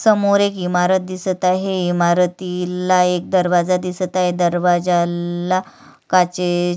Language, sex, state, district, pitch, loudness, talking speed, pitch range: Marathi, female, Maharashtra, Sindhudurg, 180 Hz, -18 LUFS, 105 wpm, 175-185 Hz